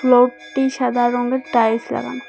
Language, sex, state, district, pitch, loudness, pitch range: Bengali, female, Assam, Hailakandi, 245 Hz, -18 LUFS, 225-255 Hz